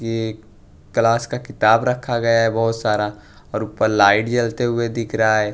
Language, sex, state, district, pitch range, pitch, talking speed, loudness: Hindi, male, Bihar, West Champaran, 105-115 Hz, 115 Hz, 185 wpm, -19 LUFS